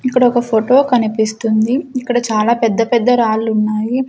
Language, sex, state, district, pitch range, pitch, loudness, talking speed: Telugu, female, Andhra Pradesh, Sri Satya Sai, 220-250 Hz, 235 Hz, -14 LUFS, 145 wpm